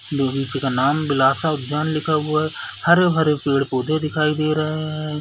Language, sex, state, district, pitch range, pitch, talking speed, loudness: Hindi, male, Chhattisgarh, Bilaspur, 140-155 Hz, 155 Hz, 175 wpm, -18 LUFS